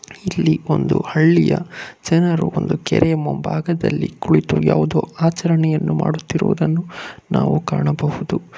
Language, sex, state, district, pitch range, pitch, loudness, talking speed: Kannada, male, Karnataka, Bangalore, 155-170 Hz, 165 Hz, -18 LUFS, 90 wpm